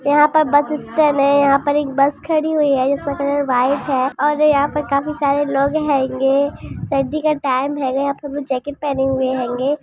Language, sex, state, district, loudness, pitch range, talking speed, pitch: Hindi, female, Chhattisgarh, Jashpur, -17 LUFS, 270-295 Hz, 195 wpm, 280 Hz